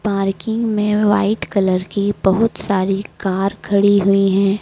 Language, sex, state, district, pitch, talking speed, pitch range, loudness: Hindi, female, Madhya Pradesh, Dhar, 200 Hz, 145 wpm, 195-210 Hz, -17 LUFS